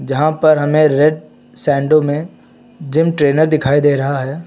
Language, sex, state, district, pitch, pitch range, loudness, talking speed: Hindi, male, Uttar Pradesh, Lucknow, 150 Hz, 140-155 Hz, -14 LUFS, 160 wpm